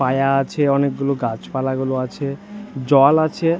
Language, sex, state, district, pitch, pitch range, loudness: Bengali, male, West Bengal, Jhargram, 140 Hz, 130-145 Hz, -18 LUFS